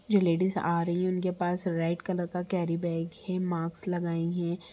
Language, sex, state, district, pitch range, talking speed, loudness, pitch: Hindi, female, Bihar, Samastipur, 170-185 Hz, 205 wpm, -30 LUFS, 175 Hz